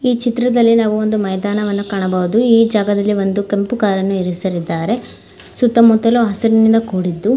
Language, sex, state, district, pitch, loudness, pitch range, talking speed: Kannada, female, Karnataka, Mysore, 210 Hz, -15 LUFS, 195-230 Hz, 130 wpm